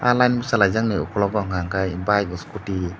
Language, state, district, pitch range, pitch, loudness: Kokborok, Tripura, Dhalai, 90-110 Hz, 100 Hz, -22 LUFS